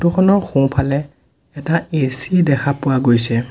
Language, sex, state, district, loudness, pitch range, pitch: Assamese, male, Assam, Sonitpur, -16 LUFS, 130-165 Hz, 140 Hz